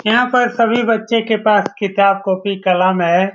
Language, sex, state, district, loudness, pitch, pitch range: Hindi, male, Bihar, Saran, -15 LUFS, 205 Hz, 190-230 Hz